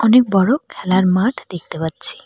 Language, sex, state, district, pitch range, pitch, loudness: Bengali, female, West Bengal, Cooch Behar, 180-240 Hz, 195 Hz, -16 LUFS